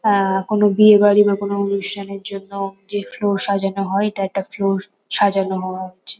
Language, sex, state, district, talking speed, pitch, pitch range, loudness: Bengali, female, West Bengal, Kolkata, 155 wpm, 200 Hz, 195-205 Hz, -18 LUFS